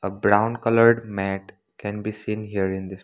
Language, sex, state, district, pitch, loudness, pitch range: English, male, Assam, Sonitpur, 105 Hz, -23 LUFS, 95-110 Hz